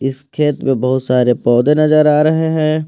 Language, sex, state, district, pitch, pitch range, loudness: Hindi, male, Jharkhand, Ranchi, 150 Hz, 130-155 Hz, -14 LUFS